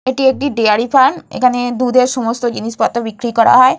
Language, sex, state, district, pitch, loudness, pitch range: Bengali, female, West Bengal, Purulia, 245 Hz, -14 LUFS, 230-260 Hz